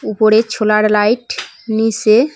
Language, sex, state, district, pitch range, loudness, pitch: Bengali, female, West Bengal, Cooch Behar, 215-225 Hz, -14 LUFS, 220 Hz